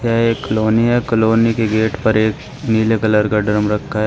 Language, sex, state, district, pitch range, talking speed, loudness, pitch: Hindi, male, Uttar Pradesh, Shamli, 110-115 Hz, 220 wpm, -16 LUFS, 110 Hz